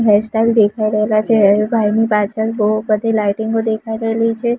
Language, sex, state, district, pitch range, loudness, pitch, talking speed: Gujarati, female, Gujarat, Gandhinagar, 215-225 Hz, -15 LUFS, 220 Hz, 195 wpm